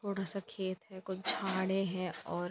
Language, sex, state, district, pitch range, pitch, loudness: Hindi, female, Bihar, Lakhisarai, 185-195 Hz, 190 Hz, -37 LUFS